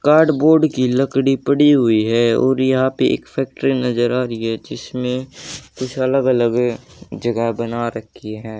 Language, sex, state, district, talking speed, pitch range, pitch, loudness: Hindi, male, Haryana, Jhajjar, 165 wpm, 115-135 Hz, 125 Hz, -17 LUFS